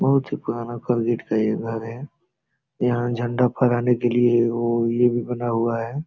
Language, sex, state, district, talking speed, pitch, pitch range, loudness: Hindi, male, Jharkhand, Sahebganj, 195 wpm, 120 Hz, 115-125 Hz, -22 LUFS